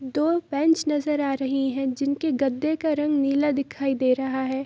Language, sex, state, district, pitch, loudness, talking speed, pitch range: Hindi, female, Bihar, East Champaran, 280 Hz, -24 LUFS, 205 wpm, 270-300 Hz